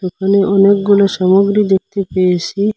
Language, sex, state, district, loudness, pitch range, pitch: Bengali, male, Assam, Hailakandi, -13 LUFS, 185-200 Hz, 195 Hz